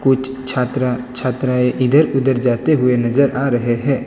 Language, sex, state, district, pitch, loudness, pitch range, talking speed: Hindi, male, Gujarat, Valsad, 130 Hz, -16 LUFS, 125-135 Hz, 165 wpm